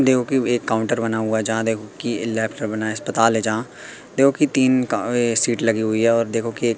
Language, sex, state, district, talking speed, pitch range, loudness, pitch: Hindi, male, Madhya Pradesh, Katni, 220 wpm, 110-120 Hz, -20 LUFS, 115 Hz